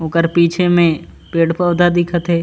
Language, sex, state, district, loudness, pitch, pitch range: Chhattisgarhi, male, Chhattisgarh, Raigarh, -15 LUFS, 170 Hz, 165-175 Hz